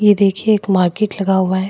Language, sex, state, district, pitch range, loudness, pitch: Hindi, female, Goa, North and South Goa, 190-210 Hz, -15 LUFS, 195 Hz